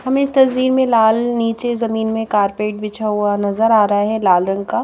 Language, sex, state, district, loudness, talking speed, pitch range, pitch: Hindi, female, Madhya Pradesh, Bhopal, -16 LUFS, 225 wpm, 205-240 Hz, 220 Hz